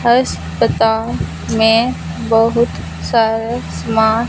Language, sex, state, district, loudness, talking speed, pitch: Hindi, female, Punjab, Fazilka, -16 LUFS, 70 wpm, 225 Hz